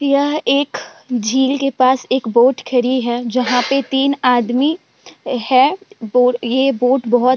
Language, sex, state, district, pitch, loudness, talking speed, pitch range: Hindi, female, Bihar, Vaishali, 255 Hz, -16 LUFS, 155 wpm, 245-275 Hz